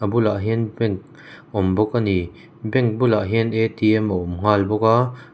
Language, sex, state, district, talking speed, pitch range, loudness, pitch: Mizo, male, Mizoram, Aizawl, 170 wpm, 105-120 Hz, -20 LUFS, 110 Hz